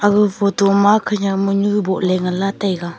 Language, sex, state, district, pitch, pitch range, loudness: Wancho, female, Arunachal Pradesh, Longding, 195 Hz, 190-205 Hz, -16 LUFS